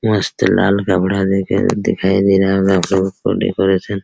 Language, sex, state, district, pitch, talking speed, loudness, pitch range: Hindi, male, Bihar, Araria, 95 Hz, 180 wpm, -15 LUFS, 95-100 Hz